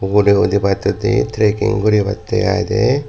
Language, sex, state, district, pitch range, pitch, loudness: Chakma, male, Tripura, Dhalai, 100-110 Hz, 105 Hz, -16 LUFS